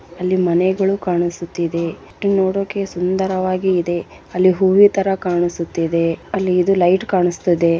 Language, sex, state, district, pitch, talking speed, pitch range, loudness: Kannada, female, Karnataka, Bellary, 180 Hz, 140 wpm, 175-190 Hz, -17 LUFS